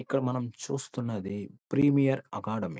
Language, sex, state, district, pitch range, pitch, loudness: Telugu, male, Andhra Pradesh, Guntur, 115-135 Hz, 125 Hz, -30 LUFS